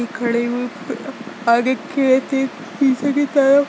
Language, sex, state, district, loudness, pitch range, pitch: Hindi, female, Uttar Pradesh, Jyotiba Phule Nagar, -19 LUFS, 240-280 Hz, 260 Hz